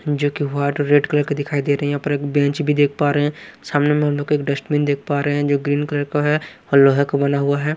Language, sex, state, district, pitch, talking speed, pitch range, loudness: Hindi, male, Haryana, Rohtak, 145 Hz, 310 wpm, 140-145 Hz, -19 LUFS